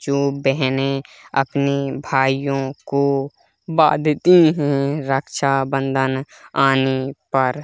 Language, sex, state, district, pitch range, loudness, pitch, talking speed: Hindi, female, Uttar Pradesh, Hamirpur, 135-140 Hz, -19 LUFS, 135 Hz, 80 wpm